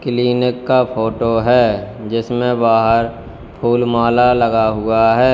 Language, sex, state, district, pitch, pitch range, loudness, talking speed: Hindi, male, Uttar Pradesh, Lalitpur, 115 Hz, 115-125 Hz, -15 LUFS, 125 wpm